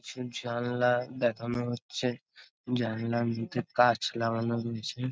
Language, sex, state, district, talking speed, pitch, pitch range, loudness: Bengali, male, West Bengal, North 24 Parganas, 105 wpm, 120 Hz, 115-125 Hz, -31 LUFS